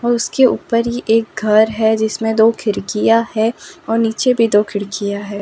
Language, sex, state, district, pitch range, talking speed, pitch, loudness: Hindi, female, Gujarat, Valsad, 210-230 Hz, 190 wpm, 220 Hz, -16 LUFS